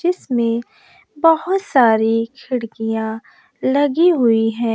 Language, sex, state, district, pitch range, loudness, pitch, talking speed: Hindi, female, Bihar, West Champaran, 225-330 Hz, -17 LUFS, 250 Hz, 90 wpm